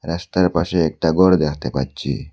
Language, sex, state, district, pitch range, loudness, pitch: Bengali, male, Assam, Hailakandi, 70-90 Hz, -18 LUFS, 80 Hz